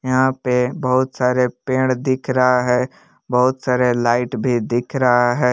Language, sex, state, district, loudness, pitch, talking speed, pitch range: Hindi, male, Jharkhand, Palamu, -18 LUFS, 125 Hz, 165 wpm, 125-130 Hz